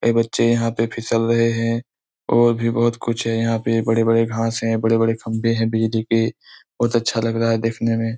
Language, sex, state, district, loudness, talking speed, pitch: Hindi, male, Bihar, Araria, -19 LUFS, 215 wpm, 115 Hz